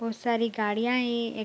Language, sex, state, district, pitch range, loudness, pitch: Hindi, female, Bihar, Vaishali, 225-235 Hz, -27 LUFS, 230 Hz